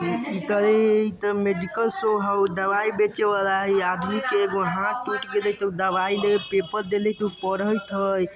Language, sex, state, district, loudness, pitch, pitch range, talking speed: Bajjika, male, Bihar, Vaishali, -23 LUFS, 200 Hz, 195-210 Hz, 160 wpm